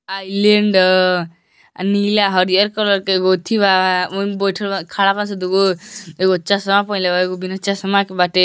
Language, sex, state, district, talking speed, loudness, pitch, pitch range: Bhojpuri, male, Uttar Pradesh, Deoria, 175 wpm, -16 LUFS, 195 Hz, 185-200 Hz